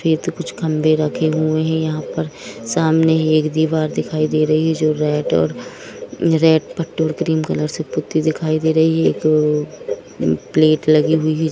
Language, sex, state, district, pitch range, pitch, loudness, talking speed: Hindi, female, Jharkhand, Jamtara, 155-160 Hz, 155 Hz, -17 LUFS, 170 wpm